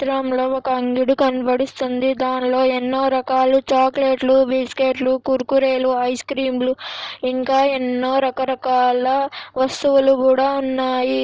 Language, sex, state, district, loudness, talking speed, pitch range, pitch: Telugu, female, Andhra Pradesh, Anantapur, -18 LUFS, 100 wpm, 255-270 Hz, 260 Hz